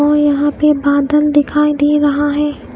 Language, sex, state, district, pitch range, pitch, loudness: Hindi, female, Himachal Pradesh, Shimla, 290-295 Hz, 295 Hz, -13 LUFS